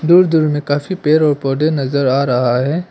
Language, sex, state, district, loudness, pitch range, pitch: Hindi, male, Arunachal Pradesh, Papum Pare, -15 LUFS, 135-160 Hz, 145 Hz